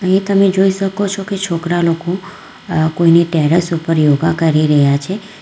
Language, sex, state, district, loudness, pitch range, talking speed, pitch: Gujarati, female, Gujarat, Valsad, -14 LUFS, 160-195 Hz, 165 wpm, 170 Hz